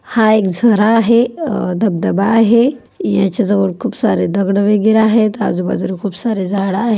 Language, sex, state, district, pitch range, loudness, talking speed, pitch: Marathi, female, Maharashtra, Pune, 195-225 Hz, -14 LUFS, 155 wpm, 210 Hz